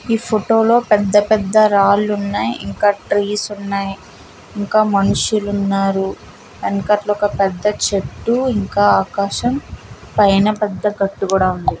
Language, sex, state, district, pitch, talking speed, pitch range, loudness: Telugu, female, Andhra Pradesh, Visakhapatnam, 205 Hz, 110 wpm, 195-210 Hz, -16 LUFS